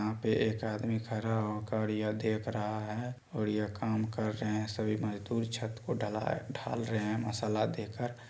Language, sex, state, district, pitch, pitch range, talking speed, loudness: Maithili, male, Bihar, Supaul, 110 Hz, 105-115 Hz, 175 wpm, -35 LUFS